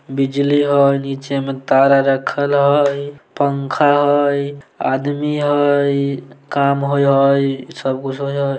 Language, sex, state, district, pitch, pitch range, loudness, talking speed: Maithili, male, Bihar, Samastipur, 140 Hz, 135-145 Hz, -16 LUFS, 160 wpm